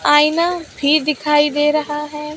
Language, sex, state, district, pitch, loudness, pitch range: Hindi, male, Maharashtra, Mumbai Suburban, 300 Hz, -16 LUFS, 295-305 Hz